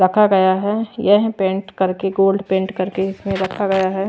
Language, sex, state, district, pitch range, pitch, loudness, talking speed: Hindi, female, Chhattisgarh, Raipur, 190-200 Hz, 195 Hz, -18 LUFS, 190 wpm